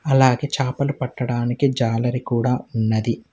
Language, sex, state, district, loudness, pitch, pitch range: Telugu, male, Telangana, Hyderabad, -21 LUFS, 125 Hz, 120-135 Hz